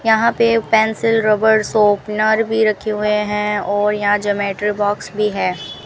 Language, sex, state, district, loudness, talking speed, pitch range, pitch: Hindi, female, Rajasthan, Bikaner, -16 LUFS, 155 wpm, 205-220 Hz, 210 Hz